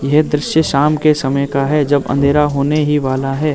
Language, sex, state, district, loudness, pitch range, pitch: Hindi, male, Arunachal Pradesh, Lower Dibang Valley, -14 LUFS, 140-150 Hz, 145 Hz